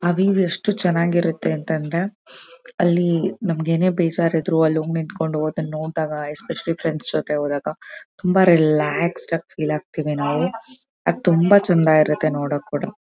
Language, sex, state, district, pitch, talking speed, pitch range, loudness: Kannada, female, Karnataka, Mysore, 165 Hz, 140 wpm, 155-175 Hz, -20 LUFS